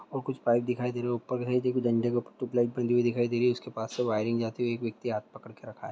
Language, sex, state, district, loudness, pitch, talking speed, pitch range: Hindi, male, Bihar, Vaishali, -29 LUFS, 120 Hz, 325 wpm, 120-125 Hz